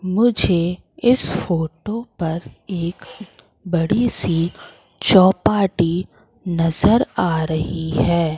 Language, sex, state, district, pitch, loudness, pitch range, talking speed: Hindi, female, Madhya Pradesh, Katni, 175 Hz, -19 LUFS, 165-205 Hz, 85 wpm